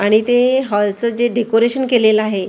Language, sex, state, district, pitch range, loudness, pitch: Marathi, female, Maharashtra, Gondia, 215-240 Hz, -15 LUFS, 230 Hz